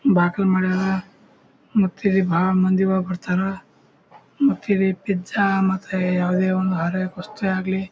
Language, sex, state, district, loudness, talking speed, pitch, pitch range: Kannada, male, Karnataka, Bijapur, -21 LUFS, 120 wpm, 190 Hz, 185-195 Hz